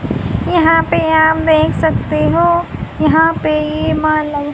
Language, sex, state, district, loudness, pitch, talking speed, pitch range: Hindi, female, Haryana, Jhajjar, -13 LUFS, 315 Hz, 120 wpm, 305-330 Hz